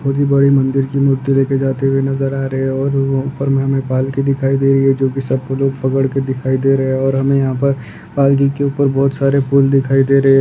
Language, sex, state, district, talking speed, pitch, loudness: Hindi, male, Maharashtra, Chandrapur, 260 wpm, 135 Hz, -15 LUFS